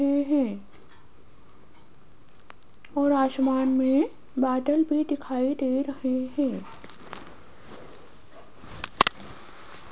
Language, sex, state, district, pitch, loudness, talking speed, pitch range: Hindi, female, Rajasthan, Jaipur, 270 Hz, -25 LUFS, 55 wpm, 260-285 Hz